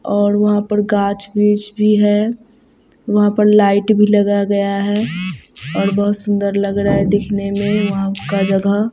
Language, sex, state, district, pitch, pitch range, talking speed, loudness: Hindi, female, Bihar, Katihar, 205 Hz, 200-210 Hz, 160 wpm, -15 LUFS